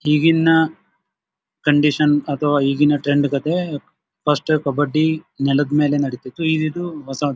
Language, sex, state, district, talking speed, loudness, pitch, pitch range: Kannada, male, Karnataka, Dharwad, 120 wpm, -18 LUFS, 150 Hz, 145-155 Hz